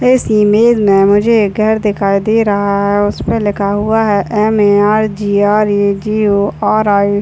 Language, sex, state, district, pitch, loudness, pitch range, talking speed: Hindi, male, Chhattisgarh, Raigarh, 205 Hz, -12 LUFS, 200-215 Hz, 205 wpm